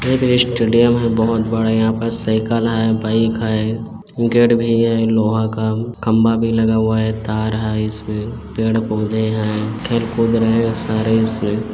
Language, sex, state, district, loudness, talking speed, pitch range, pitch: Hindi, male, Chhattisgarh, Bilaspur, -17 LUFS, 165 wpm, 110-115 Hz, 110 Hz